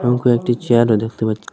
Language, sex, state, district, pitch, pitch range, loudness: Bengali, male, Assam, Hailakandi, 120 Hz, 110-120 Hz, -17 LUFS